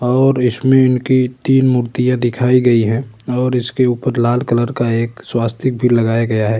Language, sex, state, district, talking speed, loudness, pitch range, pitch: Hindi, male, Uttar Pradesh, Budaun, 180 wpm, -15 LUFS, 115-125 Hz, 125 Hz